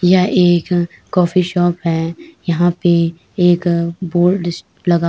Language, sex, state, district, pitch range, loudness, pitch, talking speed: Hindi, female, Uttar Pradesh, Jyotiba Phule Nagar, 170-180 Hz, -16 LUFS, 175 Hz, 140 wpm